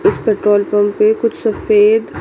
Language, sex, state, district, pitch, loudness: Hindi, female, Chandigarh, Chandigarh, 220 Hz, -13 LUFS